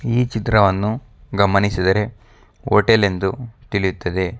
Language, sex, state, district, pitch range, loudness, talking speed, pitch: Kannada, male, Karnataka, Bangalore, 95-115 Hz, -18 LUFS, 80 wpm, 105 Hz